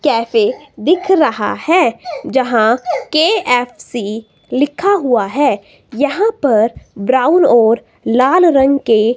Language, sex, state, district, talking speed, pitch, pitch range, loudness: Hindi, female, Himachal Pradesh, Shimla, 105 wpm, 260 Hz, 230-325 Hz, -14 LUFS